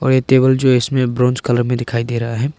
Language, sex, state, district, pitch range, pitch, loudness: Hindi, male, Arunachal Pradesh, Papum Pare, 120-130 Hz, 125 Hz, -15 LUFS